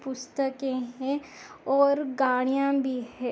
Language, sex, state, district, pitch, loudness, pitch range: Hindi, female, Goa, North and South Goa, 265 Hz, -27 LUFS, 255-275 Hz